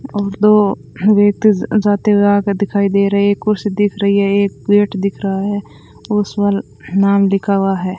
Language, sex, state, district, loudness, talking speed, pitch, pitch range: Hindi, female, Rajasthan, Bikaner, -15 LUFS, 195 wpm, 200 Hz, 195-205 Hz